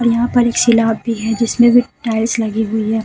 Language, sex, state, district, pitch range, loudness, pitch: Hindi, female, Uttar Pradesh, Hamirpur, 220-240 Hz, -15 LUFS, 230 Hz